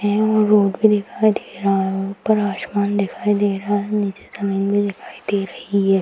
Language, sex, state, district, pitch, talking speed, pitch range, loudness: Hindi, female, Bihar, Bhagalpur, 205 Hz, 210 wpm, 195-210 Hz, -19 LUFS